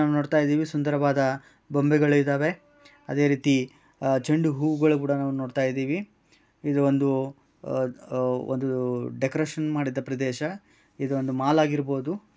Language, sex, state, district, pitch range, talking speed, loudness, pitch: Kannada, male, Karnataka, Bellary, 135-150 Hz, 105 wpm, -25 LUFS, 140 Hz